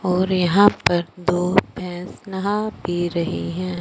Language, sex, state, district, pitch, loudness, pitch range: Hindi, male, Punjab, Fazilka, 180 Hz, -21 LUFS, 175-190 Hz